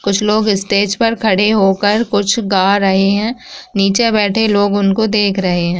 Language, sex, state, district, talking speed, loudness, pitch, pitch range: Hindi, female, Bihar, Bhagalpur, 175 wpm, -13 LUFS, 205 Hz, 195-220 Hz